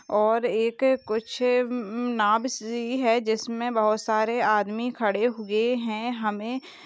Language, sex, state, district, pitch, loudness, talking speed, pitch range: Hindi, female, Chhattisgarh, Balrampur, 230 Hz, -25 LUFS, 120 wpm, 215-245 Hz